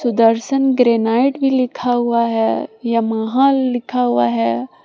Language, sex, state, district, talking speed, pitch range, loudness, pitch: Hindi, female, Jharkhand, Palamu, 135 wpm, 225-255 Hz, -16 LUFS, 235 Hz